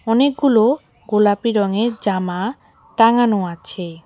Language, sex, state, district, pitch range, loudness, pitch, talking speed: Bengali, female, West Bengal, Alipurduar, 195-235 Hz, -17 LUFS, 225 Hz, 90 wpm